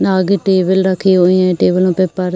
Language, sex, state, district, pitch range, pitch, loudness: Hindi, female, Uttar Pradesh, Jyotiba Phule Nagar, 185-190 Hz, 185 Hz, -13 LUFS